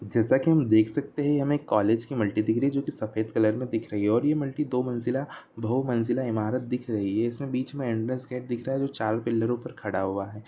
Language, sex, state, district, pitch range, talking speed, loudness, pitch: Hindi, male, Chhattisgarh, Sarguja, 110-135 Hz, 270 wpm, -27 LUFS, 120 Hz